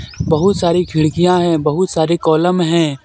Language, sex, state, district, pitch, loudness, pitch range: Hindi, male, Jharkhand, Deoghar, 170 Hz, -14 LUFS, 160-180 Hz